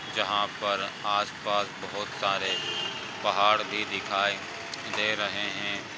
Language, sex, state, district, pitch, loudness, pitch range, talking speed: Hindi, male, Bihar, Jamui, 105 Hz, -28 LUFS, 100-105 Hz, 110 wpm